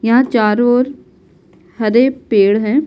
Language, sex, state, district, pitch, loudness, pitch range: Hindi, female, Bihar, Kishanganj, 235 Hz, -14 LUFS, 215-255 Hz